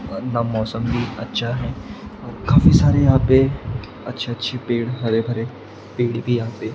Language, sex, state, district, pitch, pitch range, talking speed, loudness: Hindi, male, Maharashtra, Gondia, 120 Hz, 115-125 Hz, 170 wpm, -20 LUFS